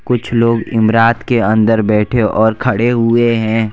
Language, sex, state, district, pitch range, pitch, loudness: Hindi, male, Gujarat, Valsad, 110-120 Hz, 115 Hz, -13 LUFS